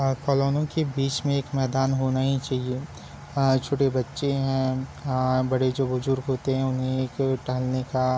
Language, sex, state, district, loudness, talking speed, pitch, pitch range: Hindi, male, Chhattisgarh, Bilaspur, -25 LUFS, 200 wpm, 135 Hz, 130-135 Hz